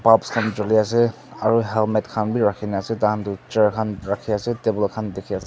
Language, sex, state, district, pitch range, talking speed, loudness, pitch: Nagamese, male, Nagaland, Dimapur, 105-115 Hz, 200 wpm, -21 LUFS, 110 Hz